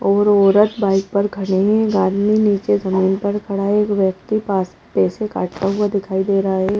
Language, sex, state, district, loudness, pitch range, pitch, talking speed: Hindi, female, Madhya Pradesh, Bhopal, -17 LUFS, 195-205 Hz, 200 Hz, 210 wpm